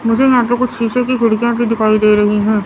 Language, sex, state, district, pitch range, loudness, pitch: Hindi, female, Chandigarh, Chandigarh, 215-245 Hz, -13 LUFS, 230 Hz